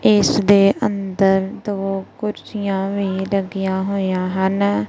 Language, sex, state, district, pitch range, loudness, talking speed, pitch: Punjabi, female, Punjab, Kapurthala, 190-200 Hz, -19 LUFS, 110 wpm, 195 Hz